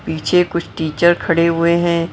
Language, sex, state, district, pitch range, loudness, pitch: Hindi, female, Maharashtra, Mumbai Suburban, 165-170 Hz, -16 LUFS, 170 Hz